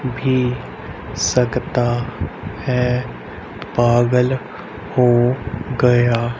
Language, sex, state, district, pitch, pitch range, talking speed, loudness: Hindi, male, Haryana, Rohtak, 125 Hz, 120-125 Hz, 55 wpm, -18 LUFS